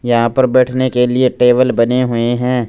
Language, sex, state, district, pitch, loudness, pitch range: Hindi, male, Punjab, Fazilka, 125 Hz, -13 LUFS, 120-130 Hz